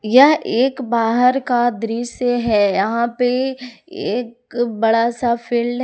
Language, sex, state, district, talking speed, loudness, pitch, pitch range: Hindi, female, Jharkhand, Ranchi, 135 wpm, -18 LUFS, 240 Hz, 230-255 Hz